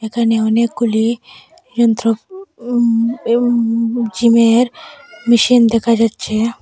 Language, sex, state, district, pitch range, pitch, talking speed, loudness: Bengali, female, Assam, Hailakandi, 230-240 Hz, 235 Hz, 80 wpm, -14 LUFS